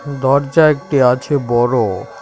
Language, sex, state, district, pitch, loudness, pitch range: Bengali, male, Tripura, West Tripura, 140 Hz, -14 LUFS, 125-145 Hz